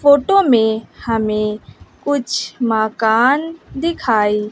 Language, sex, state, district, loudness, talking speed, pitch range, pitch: Hindi, female, Bihar, West Champaran, -16 LUFS, 95 wpm, 220-285 Hz, 230 Hz